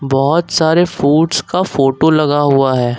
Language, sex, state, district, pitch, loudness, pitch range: Hindi, male, Uttar Pradesh, Lucknow, 145 Hz, -13 LUFS, 135-165 Hz